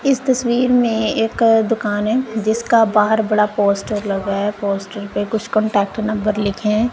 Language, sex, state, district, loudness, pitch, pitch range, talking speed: Hindi, female, Punjab, Kapurthala, -17 LUFS, 215 Hz, 205-230 Hz, 165 wpm